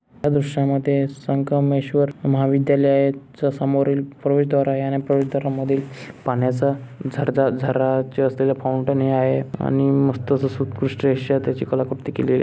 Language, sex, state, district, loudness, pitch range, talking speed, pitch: Marathi, male, Maharashtra, Solapur, -21 LUFS, 135-140 Hz, 110 wpm, 135 Hz